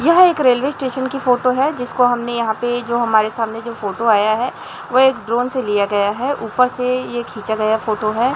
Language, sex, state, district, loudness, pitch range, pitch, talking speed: Hindi, male, Chhattisgarh, Raipur, -17 LUFS, 220-255 Hz, 240 Hz, 230 wpm